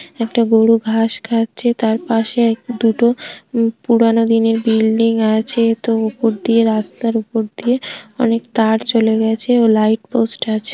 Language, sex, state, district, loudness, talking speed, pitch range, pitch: Bengali, male, West Bengal, Jhargram, -15 LUFS, 140 wpm, 220-235 Hz, 225 Hz